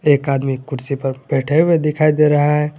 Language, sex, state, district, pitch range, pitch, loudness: Hindi, male, Jharkhand, Garhwa, 135-150 Hz, 145 Hz, -16 LUFS